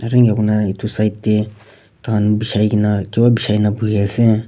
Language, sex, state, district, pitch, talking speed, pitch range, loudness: Nagamese, male, Nagaland, Kohima, 105 Hz, 145 wpm, 105-115 Hz, -16 LUFS